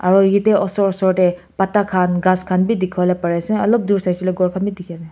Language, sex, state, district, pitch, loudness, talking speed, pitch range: Nagamese, male, Nagaland, Kohima, 185 Hz, -17 LUFS, 260 wpm, 180-200 Hz